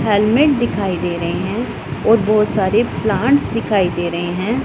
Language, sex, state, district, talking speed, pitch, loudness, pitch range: Hindi, female, Punjab, Pathankot, 170 wpm, 210 Hz, -17 LUFS, 180-225 Hz